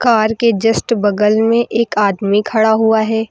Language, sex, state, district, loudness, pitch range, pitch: Hindi, female, Uttar Pradesh, Lucknow, -14 LUFS, 210-230 Hz, 220 Hz